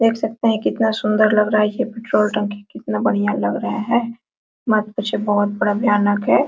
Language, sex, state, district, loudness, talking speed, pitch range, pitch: Hindi, female, Bihar, Araria, -19 LUFS, 205 wpm, 205-225 Hz, 210 Hz